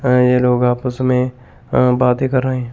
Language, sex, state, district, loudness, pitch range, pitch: Hindi, male, Chandigarh, Chandigarh, -16 LUFS, 125-130 Hz, 125 Hz